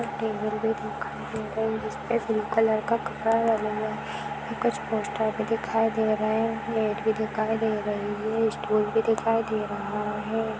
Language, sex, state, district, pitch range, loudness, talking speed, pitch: Hindi, female, Chhattisgarh, Rajnandgaon, 210-225 Hz, -27 LUFS, 185 wpm, 220 Hz